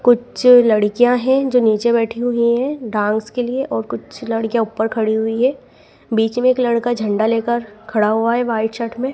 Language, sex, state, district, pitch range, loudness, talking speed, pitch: Hindi, female, Madhya Pradesh, Dhar, 220-245 Hz, -17 LUFS, 195 wpm, 230 Hz